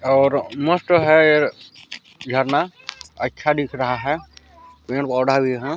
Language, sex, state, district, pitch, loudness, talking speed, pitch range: Hindi, male, Chhattisgarh, Balrampur, 140 Hz, -19 LUFS, 105 wpm, 135-155 Hz